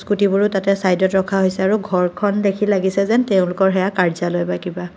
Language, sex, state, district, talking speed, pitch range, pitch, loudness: Assamese, female, Assam, Kamrup Metropolitan, 180 wpm, 180-200 Hz, 190 Hz, -18 LUFS